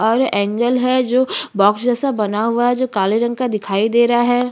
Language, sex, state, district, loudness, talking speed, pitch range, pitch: Hindi, female, Chhattisgarh, Bastar, -16 LUFS, 225 wpm, 215-250 Hz, 240 Hz